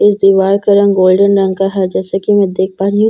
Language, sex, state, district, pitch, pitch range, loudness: Hindi, female, Bihar, Katihar, 195 Hz, 190-200 Hz, -11 LUFS